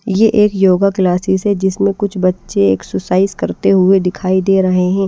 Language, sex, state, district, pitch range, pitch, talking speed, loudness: Hindi, female, Maharashtra, Washim, 185-195 Hz, 190 Hz, 175 wpm, -14 LUFS